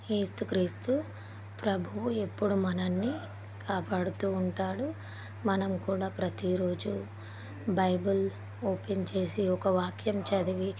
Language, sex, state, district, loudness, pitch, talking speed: Telugu, female, Telangana, Nalgonda, -32 LUFS, 185 Hz, 95 wpm